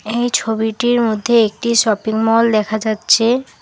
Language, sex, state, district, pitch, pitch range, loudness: Bengali, female, West Bengal, Alipurduar, 225 Hz, 220-235 Hz, -15 LUFS